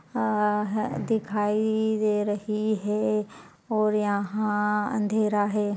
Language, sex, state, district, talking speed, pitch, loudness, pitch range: Hindi, female, Chhattisgarh, Bilaspur, 85 wpm, 210 Hz, -26 LUFS, 205-215 Hz